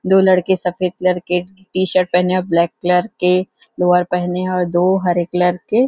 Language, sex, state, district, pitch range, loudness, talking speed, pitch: Hindi, female, Chhattisgarh, Rajnandgaon, 180-185 Hz, -17 LUFS, 185 wpm, 180 Hz